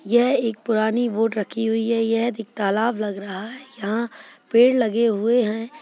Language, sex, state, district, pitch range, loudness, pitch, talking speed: Hindi, female, Chhattisgarh, Kabirdham, 215-240 Hz, -21 LUFS, 225 Hz, 185 wpm